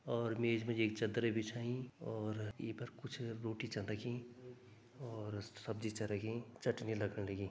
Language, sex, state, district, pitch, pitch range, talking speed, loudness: Garhwali, male, Uttarakhand, Tehri Garhwal, 115 Hz, 110-120 Hz, 165 wpm, -42 LUFS